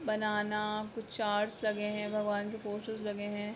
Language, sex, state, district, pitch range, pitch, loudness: Hindi, female, Jharkhand, Jamtara, 210-215 Hz, 210 Hz, -35 LUFS